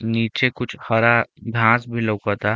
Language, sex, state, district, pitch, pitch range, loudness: Bhojpuri, male, Uttar Pradesh, Deoria, 115 Hz, 110-120 Hz, -20 LUFS